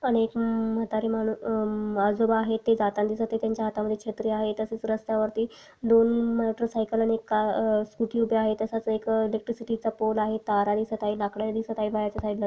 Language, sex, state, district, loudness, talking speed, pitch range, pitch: Marathi, female, Maharashtra, Sindhudurg, -27 LUFS, 190 wpm, 215-225 Hz, 220 Hz